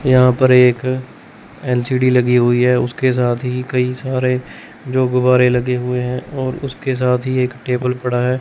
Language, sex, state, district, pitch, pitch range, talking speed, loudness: Hindi, male, Chandigarh, Chandigarh, 125 Hz, 125-130 Hz, 180 wpm, -16 LUFS